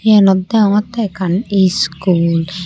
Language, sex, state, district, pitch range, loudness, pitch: Chakma, female, Tripura, Unakoti, 175-210 Hz, -14 LUFS, 190 Hz